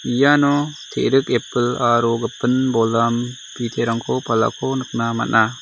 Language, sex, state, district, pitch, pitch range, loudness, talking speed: Garo, male, Meghalaya, South Garo Hills, 120 Hz, 115-130 Hz, -19 LUFS, 105 wpm